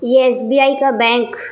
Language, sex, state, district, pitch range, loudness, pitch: Hindi, female, Bihar, Vaishali, 240-275 Hz, -13 LUFS, 255 Hz